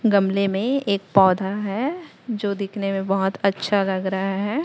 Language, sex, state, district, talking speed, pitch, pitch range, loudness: Hindi, male, Chhattisgarh, Raipur, 170 wpm, 200 Hz, 195-210 Hz, -22 LUFS